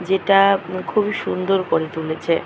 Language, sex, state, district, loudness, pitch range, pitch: Bengali, female, West Bengal, Purulia, -19 LUFS, 165-195 Hz, 185 Hz